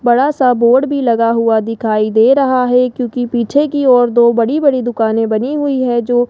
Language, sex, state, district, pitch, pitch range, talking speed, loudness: Hindi, male, Rajasthan, Jaipur, 245 Hz, 230-260 Hz, 220 wpm, -13 LUFS